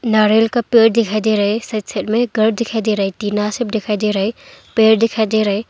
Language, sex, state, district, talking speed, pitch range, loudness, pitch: Hindi, female, Arunachal Pradesh, Longding, 275 wpm, 210-230 Hz, -16 LUFS, 220 Hz